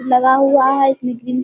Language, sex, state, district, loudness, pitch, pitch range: Hindi, female, Bihar, Vaishali, -14 LUFS, 260 Hz, 250-270 Hz